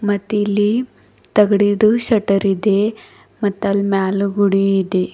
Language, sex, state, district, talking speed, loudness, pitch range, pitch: Kannada, female, Karnataka, Bidar, 115 wpm, -16 LUFS, 195-210 Hz, 205 Hz